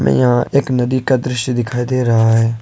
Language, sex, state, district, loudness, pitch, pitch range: Hindi, male, Jharkhand, Ranchi, -15 LUFS, 125 Hz, 115-130 Hz